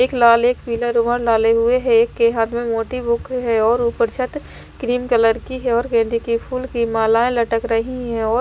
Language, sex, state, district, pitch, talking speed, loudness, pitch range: Hindi, female, Haryana, Rohtak, 235 Hz, 235 wpm, -18 LUFS, 230-245 Hz